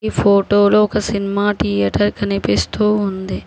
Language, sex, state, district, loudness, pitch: Telugu, female, Telangana, Hyderabad, -16 LUFS, 200 Hz